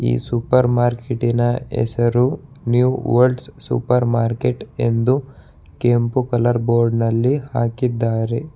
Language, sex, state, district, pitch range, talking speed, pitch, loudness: Kannada, male, Karnataka, Bangalore, 115-125 Hz, 100 wpm, 120 Hz, -19 LUFS